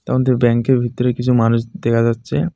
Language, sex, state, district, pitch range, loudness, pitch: Bengali, male, West Bengal, Alipurduar, 115-130 Hz, -17 LUFS, 120 Hz